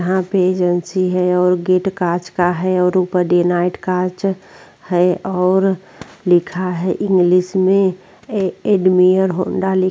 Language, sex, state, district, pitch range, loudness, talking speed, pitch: Hindi, female, Uttarakhand, Tehri Garhwal, 180-190 Hz, -16 LUFS, 150 wpm, 185 Hz